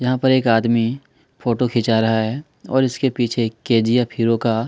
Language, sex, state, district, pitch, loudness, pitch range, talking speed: Hindi, male, Chhattisgarh, Kabirdham, 120 Hz, -19 LUFS, 115-130 Hz, 220 wpm